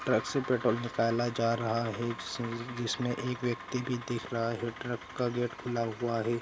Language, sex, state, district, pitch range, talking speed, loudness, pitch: Hindi, male, Andhra Pradesh, Anantapur, 115-125 Hz, 205 wpm, -32 LUFS, 120 Hz